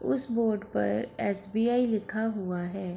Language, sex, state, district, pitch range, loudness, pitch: Hindi, female, Bihar, Gopalganj, 180-225 Hz, -29 LUFS, 205 Hz